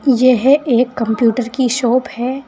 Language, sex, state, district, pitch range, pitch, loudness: Hindi, female, Uttar Pradesh, Saharanpur, 240-260 Hz, 250 Hz, -14 LUFS